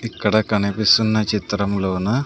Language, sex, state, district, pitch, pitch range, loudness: Telugu, male, Andhra Pradesh, Sri Satya Sai, 105 Hz, 100-110 Hz, -19 LUFS